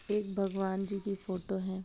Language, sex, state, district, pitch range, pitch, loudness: Hindi, female, Bihar, Gaya, 190-200 Hz, 195 Hz, -35 LUFS